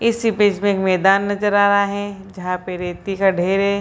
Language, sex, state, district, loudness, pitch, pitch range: Hindi, female, Bihar, Purnia, -18 LUFS, 200 Hz, 190-205 Hz